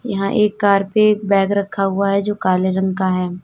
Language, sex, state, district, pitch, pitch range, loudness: Hindi, female, Uttar Pradesh, Lalitpur, 195 Hz, 190-205 Hz, -17 LUFS